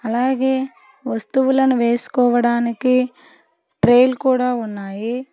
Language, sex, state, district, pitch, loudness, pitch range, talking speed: Telugu, female, Telangana, Hyderabad, 250 Hz, -18 LUFS, 240-265 Hz, 70 wpm